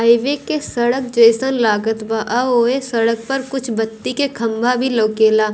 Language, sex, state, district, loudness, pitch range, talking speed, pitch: Bhojpuri, female, Bihar, Gopalganj, -17 LUFS, 225-260 Hz, 185 wpm, 235 Hz